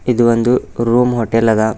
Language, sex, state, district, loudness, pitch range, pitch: Kannada, male, Karnataka, Bidar, -14 LUFS, 115-120 Hz, 115 Hz